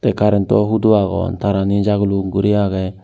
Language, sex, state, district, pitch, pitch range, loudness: Chakma, male, Tripura, Unakoti, 100 Hz, 100-105 Hz, -16 LUFS